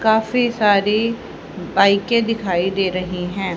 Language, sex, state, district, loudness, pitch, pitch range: Hindi, female, Haryana, Rohtak, -18 LUFS, 200 Hz, 185-225 Hz